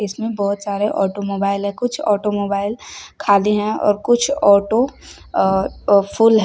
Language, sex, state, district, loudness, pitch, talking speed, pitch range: Hindi, female, Uttar Pradesh, Shamli, -18 LUFS, 205 Hz, 140 wpm, 200-220 Hz